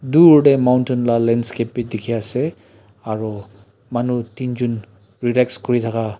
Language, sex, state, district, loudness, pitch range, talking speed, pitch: Nagamese, male, Nagaland, Dimapur, -18 LUFS, 110-125 Hz, 105 wpm, 120 Hz